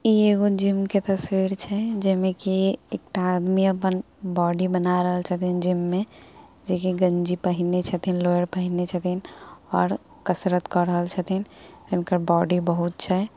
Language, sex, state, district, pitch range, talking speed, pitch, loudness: Maithili, female, Bihar, Samastipur, 180-190 Hz, 160 wpm, 180 Hz, -23 LUFS